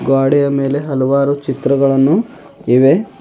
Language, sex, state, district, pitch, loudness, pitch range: Kannada, male, Karnataka, Bidar, 140 Hz, -14 LUFS, 135-140 Hz